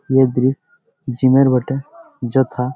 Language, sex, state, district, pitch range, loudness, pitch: Bengali, male, West Bengal, Jalpaiguri, 130-135 Hz, -17 LUFS, 130 Hz